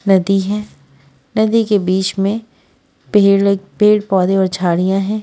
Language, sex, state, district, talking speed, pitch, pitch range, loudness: Hindi, female, Haryana, Rohtak, 135 wpm, 195 Hz, 185-210 Hz, -15 LUFS